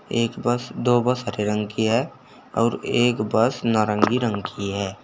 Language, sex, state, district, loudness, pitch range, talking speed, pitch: Hindi, male, Uttar Pradesh, Saharanpur, -22 LUFS, 105-120 Hz, 180 wpm, 115 Hz